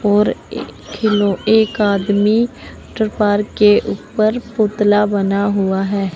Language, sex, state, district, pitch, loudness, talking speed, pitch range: Hindi, male, Chandigarh, Chandigarh, 210 Hz, -16 LUFS, 95 wpm, 200-215 Hz